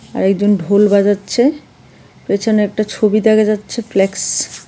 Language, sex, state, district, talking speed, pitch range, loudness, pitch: Bengali, female, Tripura, West Tripura, 130 wpm, 200-215 Hz, -14 LUFS, 205 Hz